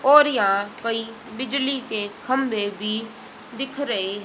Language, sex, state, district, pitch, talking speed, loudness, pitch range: Hindi, female, Haryana, Rohtak, 225 Hz, 140 wpm, -23 LUFS, 210-270 Hz